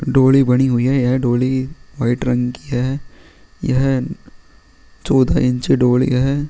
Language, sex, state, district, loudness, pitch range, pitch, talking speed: Hindi, male, Chhattisgarh, Sukma, -17 LUFS, 125-135 Hz, 130 Hz, 130 wpm